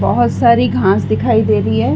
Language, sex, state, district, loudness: Hindi, female, Uttar Pradesh, Varanasi, -13 LUFS